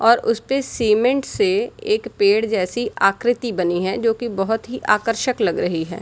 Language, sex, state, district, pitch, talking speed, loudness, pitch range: Hindi, female, Bihar, Sitamarhi, 230 Hz, 170 wpm, -20 LUFS, 205-250 Hz